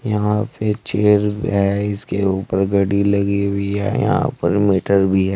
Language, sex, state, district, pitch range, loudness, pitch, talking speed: Hindi, male, Uttar Pradesh, Saharanpur, 100-105 Hz, -18 LUFS, 100 Hz, 170 wpm